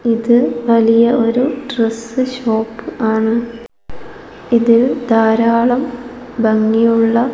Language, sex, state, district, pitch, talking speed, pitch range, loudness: Malayalam, female, Kerala, Kozhikode, 235 Hz, 75 wpm, 225-245 Hz, -14 LUFS